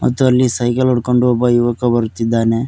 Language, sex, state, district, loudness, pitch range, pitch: Kannada, male, Karnataka, Koppal, -15 LUFS, 120-125 Hz, 120 Hz